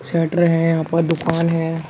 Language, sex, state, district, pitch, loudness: Hindi, male, Uttar Pradesh, Shamli, 165 Hz, -18 LUFS